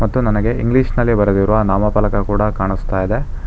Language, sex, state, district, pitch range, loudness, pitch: Kannada, male, Karnataka, Bangalore, 95-115 Hz, -16 LUFS, 105 Hz